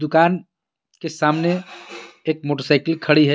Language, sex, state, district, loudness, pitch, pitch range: Hindi, male, Jharkhand, Garhwa, -20 LUFS, 160 Hz, 150-170 Hz